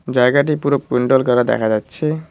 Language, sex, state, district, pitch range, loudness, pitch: Bengali, male, West Bengal, Cooch Behar, 125-150 Hz, -16 LUFS, 135 Hz